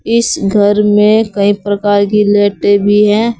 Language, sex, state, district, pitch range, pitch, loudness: Hindi, female, Uttar Pradesh, Saharanpur, 205-210 Hz, 205 Hz, -11 LUFS